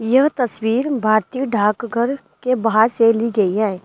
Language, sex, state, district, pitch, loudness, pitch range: Hindi, female, Delhi, New Delhi, 230 Hz, -18 LUFS, 215-255 Hz